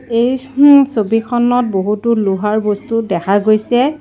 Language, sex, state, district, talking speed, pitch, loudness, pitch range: Assamese, female, Assam, Sonitpur, 105 wpm, 230 Hz, -13 LUFS, 210-245 Hz